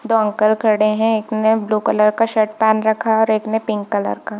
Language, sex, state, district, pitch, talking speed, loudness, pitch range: Hindi, female, Jharkhand, Sahebganj, 215 Hz, 260 wpm, -17 LUFS, 215-220 Hz